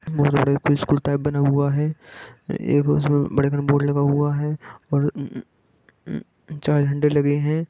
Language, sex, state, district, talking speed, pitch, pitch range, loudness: Hindi, male, Jharkhand, Sahebganj, 125 wpm, 145 Hz, 140-150 Hz, -21 LUFS